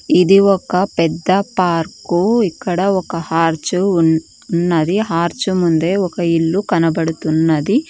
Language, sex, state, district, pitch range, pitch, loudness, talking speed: Telugu, female, Karnataka, Bangalore, 165-195 Hz, 175 Hz, -16 LUFS, 105 wpm